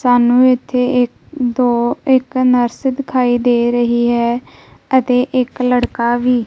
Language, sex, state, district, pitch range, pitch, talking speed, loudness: Punjabi, female, Punjab, Kapurthala, 240-255 Hz, 250 Hz, 130 wpm, -15 LUFS